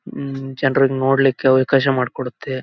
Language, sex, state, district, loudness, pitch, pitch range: Kannada, male, Karnataka, Bellary, -18 LUFS, 135 Hz, 130-135 Hz